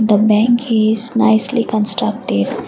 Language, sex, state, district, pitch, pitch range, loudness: English, female, Assam, Kamrup Metropolitan, 220 Hz, 215-230 Hz, -15 LUFS